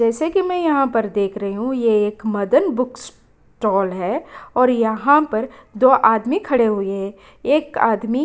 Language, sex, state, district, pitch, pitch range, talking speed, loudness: Hindi, female, Bihar, Kishanganj, 230 Hz, 210-275 Hz, 175 wpm, -18 LUFS